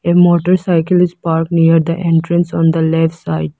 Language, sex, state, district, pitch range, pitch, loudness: English, female, Arunachal Pradesh, Lower Dibang Valley, 165-175 Hz, 165 Hz, -13 LUFS